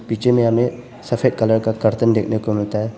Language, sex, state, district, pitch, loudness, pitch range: Hindi, male, Arunachal Pradesh, Papum Pare, 115 Hz, -18 LUFS, 110-120 Hz